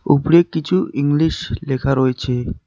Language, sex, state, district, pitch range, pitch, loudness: Bengali, male, West Bengal, Alipurduar, 130-160 Hz, 140 Hz, -17 LUFS